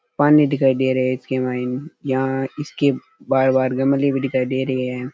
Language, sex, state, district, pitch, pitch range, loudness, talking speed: Rajasthani, male, Rajasthan, Churu, 130 Hz, 130-140 Hz, -19 LUFS, 200 wpm